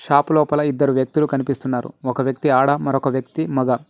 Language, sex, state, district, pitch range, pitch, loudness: Telugu, male, Telangana, Mahabubabad, 130-145 Hz, 140 Hz, -19 LUFS